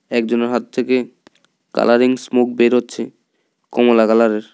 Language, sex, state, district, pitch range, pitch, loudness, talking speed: Bengali, male, Tripura, South Tripura, 115-125 Hz, 120 Hz, -16 LUFS, 120 wpm